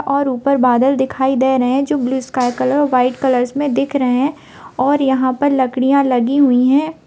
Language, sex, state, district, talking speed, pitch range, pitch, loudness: Hindi, female, Bihar, Purnia, 195 wpm, 255-280 Hz, 265 Hz, -15 LUFS